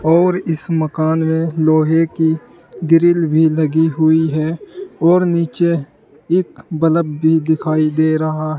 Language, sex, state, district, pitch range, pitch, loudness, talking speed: Hindi, male, Uttar Pradesh, Saharanpur, 155-165 Hz, 160 Hz, -15 LUFS, 140 wpm